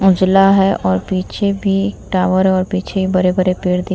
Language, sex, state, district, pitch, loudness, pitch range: Hindi, female, Bihar, Vaishali, 185 Hz, -15 LUFS, 185-195 Hz